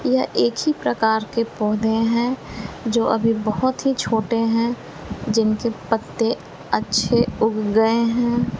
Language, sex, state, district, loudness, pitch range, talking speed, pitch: Hindi, female, Bihar, West Champaran, -20 LUFS, 220-235 Hz, 130 wpm, 225 Hz